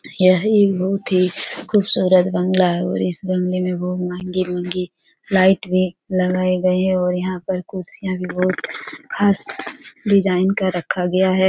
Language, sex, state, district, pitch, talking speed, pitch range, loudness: Hindi, female, Bihar, Supaul, 185 Hz, 160 wpm, 180-190 Hz, -19 LUFS